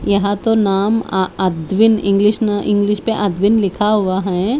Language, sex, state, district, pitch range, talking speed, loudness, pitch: Hindi, female, Haryana, Charkhi Dadri, 195-215 Hz, 170 wpm, -16 LUFS, 205 Hz